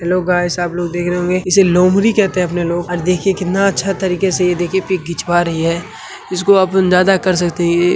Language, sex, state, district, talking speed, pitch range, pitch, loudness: Hindi, male, Bihar, Saran, 250 wpm, 175-190 Hz, 180 Hz, -15 LUFS